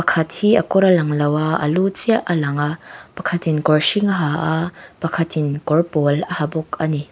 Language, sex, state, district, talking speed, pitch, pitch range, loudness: Mizo, female, Mizoram, Aizawl, 250 wpm, 160 Hz, 150-180 Hz, -18 LUFS